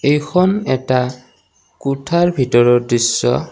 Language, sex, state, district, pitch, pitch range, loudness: Assamese, male, Assam, Kamrup Metropolitan, 130 Hz, 120-155 Hz, -16 LUFS